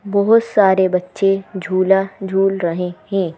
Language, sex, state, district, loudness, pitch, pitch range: Hindi, female, Madhya Pradesh, Bhopal, -17 LUFS, 195 Hz, 185-195 Hz